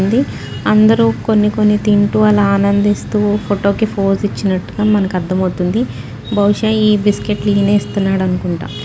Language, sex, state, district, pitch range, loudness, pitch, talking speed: Telugu, female, Telangana, Nalgonda, 185-210 Hz, -14 LUFS, 205 Hz, 130 wpm